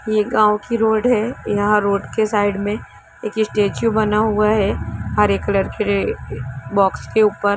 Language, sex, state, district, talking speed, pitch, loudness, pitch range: Hindi, female, Jharkhand, Jamtara, 175 wpm, 210 Hz, -18 LUFS, 200-215 Hz